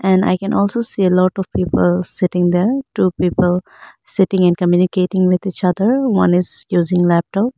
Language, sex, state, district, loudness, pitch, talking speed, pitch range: English, female, Arunachal Pradesh, Lower Dibang Valley, -16 LUFS, 185 Hz, 180 wpm, 180-195 Hz